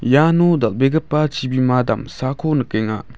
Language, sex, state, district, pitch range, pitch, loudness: Garo, male, Meghalaya, West Garo Hills, 125-150 Hz, 130 Hz, -17 LUFS